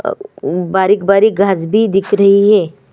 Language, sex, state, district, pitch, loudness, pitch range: Hindi, female, Chhattisgarh, Sukma, 200 Hz, -12 LUFS, 190-205 Hz